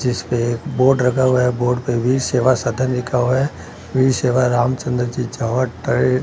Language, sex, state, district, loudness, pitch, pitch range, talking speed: Hindi, male, Rajasthan, Bikaner, -18 LUFS, 125 Hz, 120-130 Hz, 185 wpm